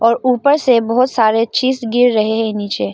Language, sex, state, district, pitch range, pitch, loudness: Hindi, female, Arunachal Pradesh, Lower Dibang Valley, 220-255 Hz, 230 Hz, -14 LUFS